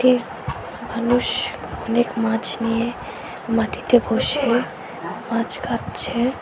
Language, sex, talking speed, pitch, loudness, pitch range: Bengali, female, 85 wpm, 235 Hz, -21 LUFS, 230-245 Hz